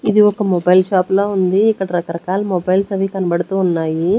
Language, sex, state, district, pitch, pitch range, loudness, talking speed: Telugu, female, Andhra Pradesh, Sri Satya Sai, 190 Hz, 180-195 Hz, -16 LUFS, 170 wpm